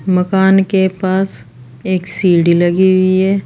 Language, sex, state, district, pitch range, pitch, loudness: Hindi, female, Uttar Pradesh, Saharanpur, 175-190 Hz, 185 Hz, -13 LUFS